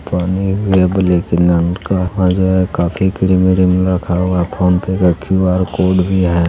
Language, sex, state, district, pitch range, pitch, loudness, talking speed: Maithili, male, Bihar, Araria, 90-95 Hz, 90 Hz, -14 LUFS, 185 wpm